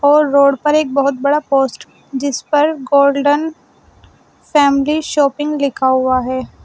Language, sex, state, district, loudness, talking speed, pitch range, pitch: Hindi, female, Uttar Pradesh, Shamli, -14 LUFS, 135 wpm, 270-295 Hz, 280 Hz